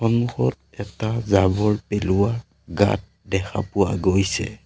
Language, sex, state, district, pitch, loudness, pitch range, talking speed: Assamese, male, Assam, Sonitpur, 100 Hz, -22 LUFS, 95-110 Hz, 105 wpm